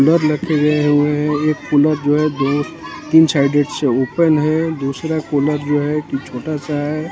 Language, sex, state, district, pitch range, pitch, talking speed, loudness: Hindi, male, Haryana, Jhajjar, 145-155 Hz, 150 Hz, 195 wpm, -16 LUFS